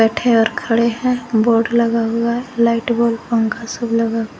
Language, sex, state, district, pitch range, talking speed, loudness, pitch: Hindi, female, Jharkhand, Garhwa, 230-235 Hz, 150 wpm, -17 LUFS, 230 Hz